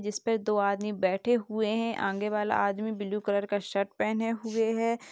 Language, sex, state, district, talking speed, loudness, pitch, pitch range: Hindi, female, Uttar Pradesh, Gorakhpur, 185 wpm, -29 LUFS, 210 Hz, 200-225 Hz